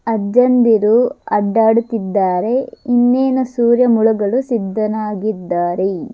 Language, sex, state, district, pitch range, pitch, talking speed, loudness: Kannada, male, Karnataka, Dharwad, 210-245 Hz, 225 Hz, 60 wpm, -15 LUFS